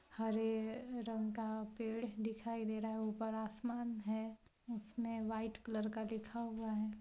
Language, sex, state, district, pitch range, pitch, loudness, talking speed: Hindi, female, Chhattisgarh, Balrampur, 220-225 Hz, 220 Hz, -42 LUFS, 155 wpm